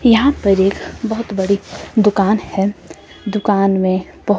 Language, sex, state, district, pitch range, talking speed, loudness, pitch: Hindi, female, Himachal Pradesh, Shimla, 195-215 Hz, 135 wpm, -16 LUFS, 205 Hz